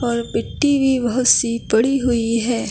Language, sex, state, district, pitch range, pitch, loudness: Hindi, female, Chhattisgarh, Kabirdham, 235-260 Hz, 240 Hz, -17 LUFS